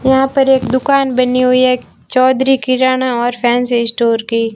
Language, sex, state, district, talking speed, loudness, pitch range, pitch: Hindi, female, Rajasthan, Barmer, 170 wpm, -13 LUFS, 240-260 Hz, 255 Hz